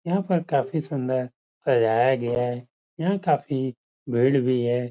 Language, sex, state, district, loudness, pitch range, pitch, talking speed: Hindi, male, Uttar Pradesh, Muzaffarnagar, -24 LUFS, 125-155 Hz, 130 Hz, 145 wpm